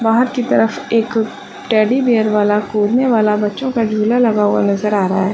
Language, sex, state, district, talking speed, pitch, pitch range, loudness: Hindi, female, Chhattisgarh, Raigarh, 200 wpm, 220 Hz, 210-230 Hz, -15 LUFS